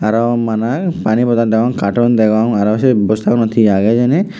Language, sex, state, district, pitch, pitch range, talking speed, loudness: Chakma, male, Tripura, West Tripura, 115 Hz, 110-120 Hz, 190 wpm, -13 LUFS